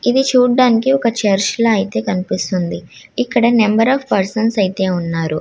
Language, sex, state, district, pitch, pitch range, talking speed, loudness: Telugu, female, Andhra Pradesh, Guntur, 225 Hz, 190-245 Hz, 135 wpm, -15 LUFS